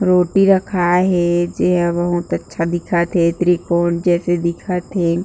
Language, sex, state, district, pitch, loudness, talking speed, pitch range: Chhattisgarhi, female, Chhattisgarh, Jashpur, 175 Hz, -17 LUFS, 135 wpm, 170-180 Hz